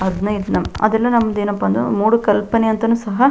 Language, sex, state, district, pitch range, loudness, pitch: Kannada, female, Karnataka, Belgaum, 205-230 Hz, -17 LUFS, 215 Hz